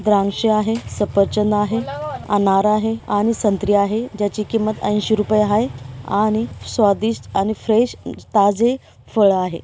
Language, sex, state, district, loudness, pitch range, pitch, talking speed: Marathi, female, Maharashtra, Dhule, -18 LUFS, 200-220 Hz, 210 Hz, 130 wpm